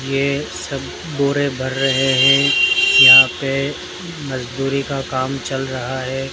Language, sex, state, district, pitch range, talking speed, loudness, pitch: Hindi, male, Rajasthan, Bikaner, 130-140 Hz, 135 wpm, -15 LUFS, 135 Hz